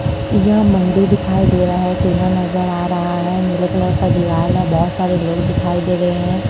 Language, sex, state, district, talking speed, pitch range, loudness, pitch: Hindi, male, Chhattisgarh, Raipur, 210 wpm, 175-180 Hz, -16 LUFS, 180 Hz